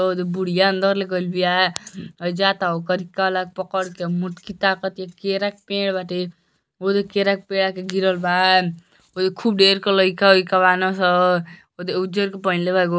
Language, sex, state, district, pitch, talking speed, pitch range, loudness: Bhojpuri, male, Uttar Pradesh, Deoria, 185 Hz, 190 wpm, 180-195 Hz, -20 LUFS